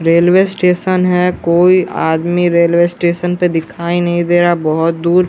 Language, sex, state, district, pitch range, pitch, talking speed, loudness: Hindi, male, Bihar, West Champaran, 170-180 Hz, 175 Hz, 170 wpm, -13 LUFS